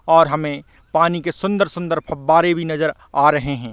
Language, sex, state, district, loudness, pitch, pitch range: Hindi, male, Chhattisgarh, Balrampur, -18 LUFS, 160 Hz, 150-170 Hz